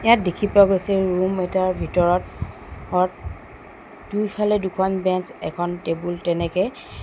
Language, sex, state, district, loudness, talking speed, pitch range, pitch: Assamese, female, Assam, Sonitpur, -21 LUFS, 120 wpm, 175-195 Hz, 185 Hz